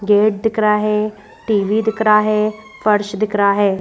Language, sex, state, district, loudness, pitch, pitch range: Hindi, female, Madhya Pradesh, Bhopal, -16 LUFS, 210 Hz, 205-215 Hz